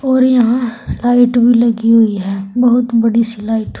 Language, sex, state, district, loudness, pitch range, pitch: Hindi, female, Uttar Pradesh, Saharanpur, -13 LUFS, 225-245 Hz, 235 Hz